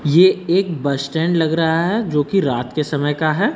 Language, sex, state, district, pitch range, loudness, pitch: Hindi, male, Uttar Pradesh, Lucknow, 145-185 Hz, -18 LUFS, 160 Hz